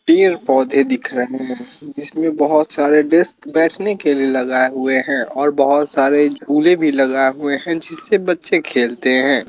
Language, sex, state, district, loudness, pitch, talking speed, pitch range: Hindi, male, Chandigarh, Chandigarh, -16 LUFS, 145 Hz, 170 wpm, 130-160 Hz